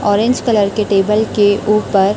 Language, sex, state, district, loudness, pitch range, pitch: Hindi, female, Chhattisgarh, Raipur, -14 LUFS, 205-215 Hz, 210 Hz